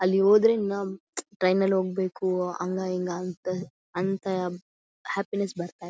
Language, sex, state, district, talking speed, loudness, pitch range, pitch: Kannada, female, Karnataka, Bellary, 120 wpm, -27 LUFS, 180-195 Hz, 185 Hz